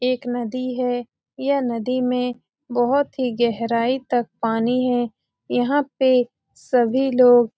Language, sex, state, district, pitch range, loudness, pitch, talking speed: Hindi, female, Bihar, Saran, 240-255 Hz, -21 LUFS, 250 Hz, 135 wpm